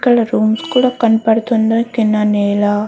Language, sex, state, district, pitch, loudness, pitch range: Telugu, female, Andhra Pradesh, Guntur, 225 Hz, -14 LUFS, 210-235 Hz